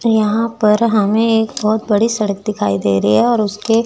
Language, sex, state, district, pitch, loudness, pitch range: Hindi, female, Chandigarh, Chandigarh, 215 Hz, -15 LUFS, 205-225 Hz